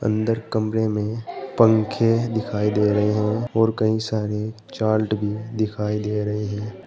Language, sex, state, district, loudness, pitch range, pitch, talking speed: Hindi, male, Uttar Pradesh, Saharanpur, -22 LUFS, 105-110 Hz, 110 Hz, 150 wpm